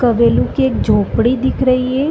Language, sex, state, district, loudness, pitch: Hindi, female, Chhattisgarh, Bastar, -14 LUFS, 235 Hz